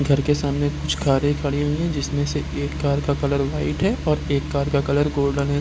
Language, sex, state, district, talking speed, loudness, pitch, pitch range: Hindi, male, Bihar, Gopalganj, 255 wpm, -22 LUFS, 140 Hz, 140-145 Hz